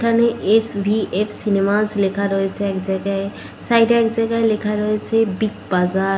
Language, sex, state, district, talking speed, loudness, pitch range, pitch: Bengali, female, West Bengal, Purulia, 175 wpm, -19 LUFS, 195-225 Hz, 210 Hz